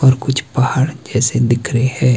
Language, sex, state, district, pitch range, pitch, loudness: Hindi, male, Himachal Pradesh, Shimla, 125-135 Hz, 130 Hz, -16 LUFS